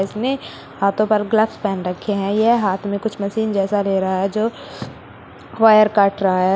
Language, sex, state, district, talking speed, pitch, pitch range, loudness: Hindi, female, Uttar Pradesh, Shamli, 190 wpm, 200 Hz, 195-215 Hz, -18 LUFS